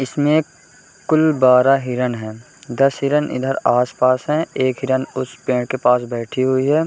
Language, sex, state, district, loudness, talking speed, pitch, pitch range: Hindi, male, Bihar, Gopalganj, -18 LUFS, 190 wpm, 130 Hz, 125-145 Hz